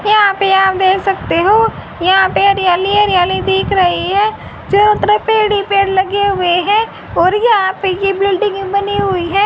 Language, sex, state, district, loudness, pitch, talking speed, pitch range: Hindi, female, Haryana, Jhajjar, -13 LUFS, 395 Hz, 185 wpm, 380-410 Hz